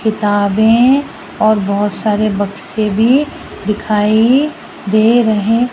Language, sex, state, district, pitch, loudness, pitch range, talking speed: Hindi, female, Rajasthan, Jaipur, 215 Hz, -13 LUFS, 210-240 Hz, 95 wpm